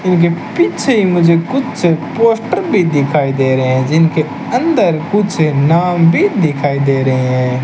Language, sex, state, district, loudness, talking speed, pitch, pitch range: Hindi, male, Rajasthan, Bikaner, -13 LUFS, 150 wpm, 165 Hz, 140-195 Hz